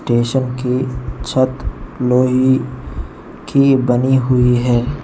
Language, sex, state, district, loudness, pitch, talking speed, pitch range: Hindi, male, Arunachal Pradesh, Lower Dibang Valley, -15 LUFS, 125 Hz, 95 wpm, 125-130 Hz